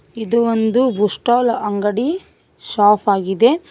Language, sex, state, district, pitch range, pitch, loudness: Kannada, female, Karnataka, Koppal, 205-240 Hz, 230 Hz, -16 LUFS